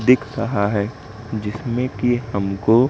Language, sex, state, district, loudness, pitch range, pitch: Hindi, male, Madhya Pradesh, Katni, -21 LUFS, 105-125 Hz, 115 Hz